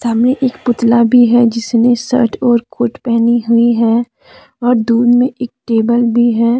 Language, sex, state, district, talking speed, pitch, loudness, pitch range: Hindi, female, Jharkhand, Deoghar, 165 wpm, 235 Hz, -12 LUFS, 230-245 Hz